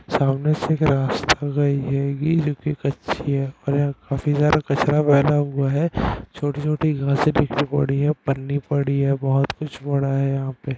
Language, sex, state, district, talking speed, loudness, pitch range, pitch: Hindi, male, Uttarakhand, Tehri Garhwal, 180 wpm, -21 LUFS, 140-150 Hz, 140 Hz